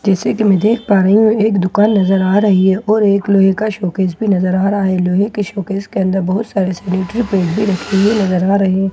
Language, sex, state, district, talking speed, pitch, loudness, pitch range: Hindi, female, Bihar, Katihar, 260 wpm, 195 Hz, -14 LUFS, 190-210 Hz